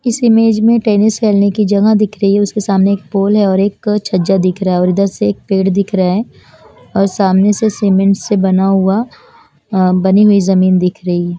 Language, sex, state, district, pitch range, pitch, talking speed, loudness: Hindi, female, Chandigarh, Chandigarh, 190-210 Hz, 195 Hz, 225 wpm, -12 LUFS